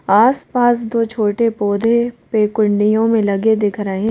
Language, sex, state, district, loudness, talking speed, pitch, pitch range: Hindi, female, Madhya Pradesh, Bhopal, -16 LUFS, 145 wpm, 220 Hz, 210-230 Hz